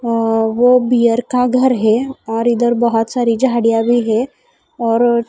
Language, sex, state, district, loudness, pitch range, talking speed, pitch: Hindi, female, Odisha, Khordha, -14 LUFS, 230-250 Hz, 160 wpm, 235 Hz